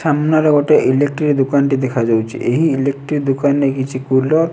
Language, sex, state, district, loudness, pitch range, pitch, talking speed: Odia, male, Odisha, Nuapada, -15 LUFS, 130-150 Hz, 140 Hz, 170 wpm